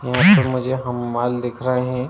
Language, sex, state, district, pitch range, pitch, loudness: Hindi, male, Uttar Pradesh, Ghazipur, 125-130 Hz, 125 Hz, -19 LUFS